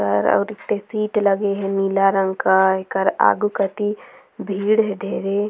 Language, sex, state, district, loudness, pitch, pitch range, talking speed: Surgujia, female, Chhattisgarh, Sarguja, -19 LUFS, 195 Hz, 195-210 Hz, 165 wpm